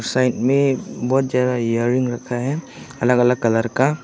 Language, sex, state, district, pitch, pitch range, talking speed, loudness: Hindi, male, Arunachal Pradesh, Longding, 125 Hz, 120-135 Hz, 165 wpm, -19 LUFS